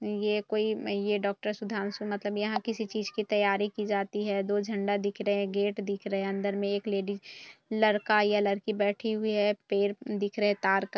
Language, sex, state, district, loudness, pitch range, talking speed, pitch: Hindi, female, Bihar, Purnia, -30 LUFS, 200-210 Hz, 195 wpm, 205 Hz